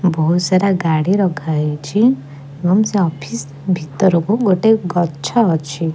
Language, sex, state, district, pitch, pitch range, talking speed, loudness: Odia, female, Odisha, Khordha, 175 Hz, 150-195 Hz, 120 wpm, -16 LUFS